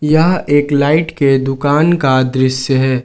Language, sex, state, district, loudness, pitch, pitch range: Hindi, male, Jharkhand, Garhwa, -13 LUFS, 140 Hz, 130-155 Hz